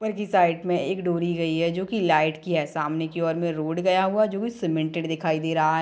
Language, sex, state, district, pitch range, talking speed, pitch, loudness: Hindi, female, Chhattisgarh, Bilaspur, 160-185 Hz, 290 wpm, 170 Hz, -24 LUFS